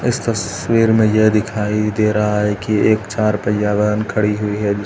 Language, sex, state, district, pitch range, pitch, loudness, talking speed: Hindi, male, Uttar Pradesh, Etah, 105-110 Hz, 105 Hz, -16 LUFS, 195 wpm